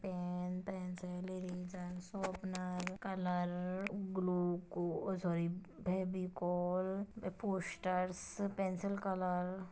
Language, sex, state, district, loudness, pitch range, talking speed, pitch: Hindi, female, Chhattisgarh, Kabirdham, -40 LUFS, 180-190 Hz, 85 wpm, 185 Hz